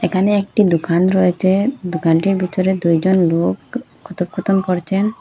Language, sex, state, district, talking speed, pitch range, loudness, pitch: Bengali, female, Assam, Hailakandi, 115 wpm, 175-195 Hz, -16 LUFS, 185 Hz